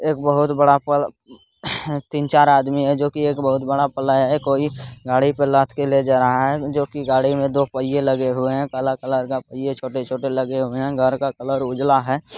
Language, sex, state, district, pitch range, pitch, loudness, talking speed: Hindi, male, Bihar, Supaul, 130-145 Hz, 135 Hz, -19 LUFS, 220 wpm